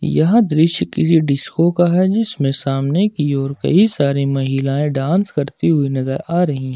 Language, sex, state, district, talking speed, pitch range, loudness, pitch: Hindi, male, Jharkhand, Ranchi, 175 wpm, 135-175 Hz, -16 LUFS, 150 Hz